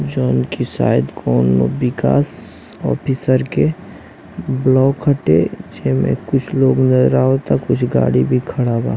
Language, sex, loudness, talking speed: Bhojpuri, male, -16 LUFS, 95 wpm